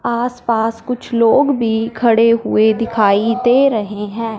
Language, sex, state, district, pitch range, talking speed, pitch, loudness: Hindi, male, Punjab, Fazilka, 220-240 Hz, 150 wpm, 230 Hz, -15 LUFS